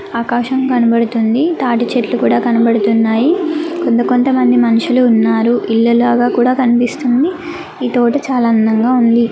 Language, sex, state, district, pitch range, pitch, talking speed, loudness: Telugu, female, Andhra Pradesh, Guntur, 230-260 Hz, 240 Hz, 130 wpm, -13 LUFS